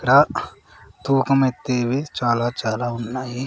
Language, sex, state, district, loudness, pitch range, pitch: Telugu, female, Andhra Pradesh, Sri Satya Sai, -21 LUFS, 120-135 Hz, 125 Hz